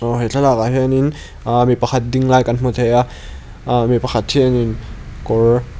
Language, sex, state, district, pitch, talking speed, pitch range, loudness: Mizo, male, Mizoram, Aizawl, 120 Hz, 195 wpm, 120-130 Hz, -16 LUFS